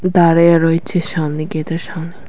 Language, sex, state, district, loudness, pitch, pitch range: Bengali, female, Tripura, West Tripura, -15 LUFS, 165 Hz, 165-170 Hz